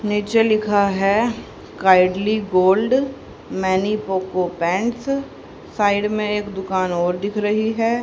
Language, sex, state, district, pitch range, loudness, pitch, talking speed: Hindi, female, Haryana, Rohtak, 190-220 Hz, -19 LUFS, 205 Hz, 120 wpm